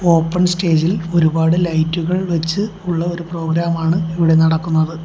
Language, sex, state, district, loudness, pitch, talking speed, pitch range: Malayalam, male, Kerala, Kollam, -17 LUFS, 170 Hz, 130 wpm, 160-175 Hz